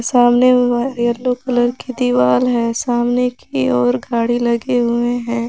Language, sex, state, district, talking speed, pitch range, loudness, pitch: Hindi, female, Jharkhand, Garhwa, 140 wpm, 235-250 Hz, -16 LUFS, 240 Hz